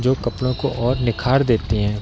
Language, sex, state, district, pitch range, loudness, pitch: Hindi, male, Bihar, East Champaran, 110-130 Hz, -20 LUFS, 120 Hz